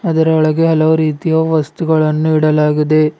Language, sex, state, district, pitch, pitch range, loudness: Kannada, male, Karnataka, Bidar, 155 Hz, 155-160 Hz, -13 LUFS